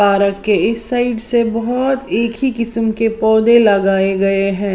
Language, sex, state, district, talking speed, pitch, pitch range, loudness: Hindi, female, Maharashtra, Washim, 175 wpm, 225 Hz, 200-235 Hz, -15 LUFS